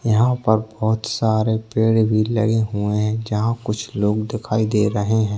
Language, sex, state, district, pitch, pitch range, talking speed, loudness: Hindi, male, Chhattisgarh, Kabirdham, 110 Hz, 105-110 Hz, 180 wpm, -20 LUFS